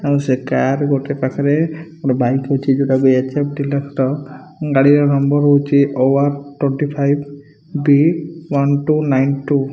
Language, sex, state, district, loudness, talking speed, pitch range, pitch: Odia, male, Odisha, Malkangiri, -16 LUFS, 140 wpm, 135-145 Hz, 140 Hz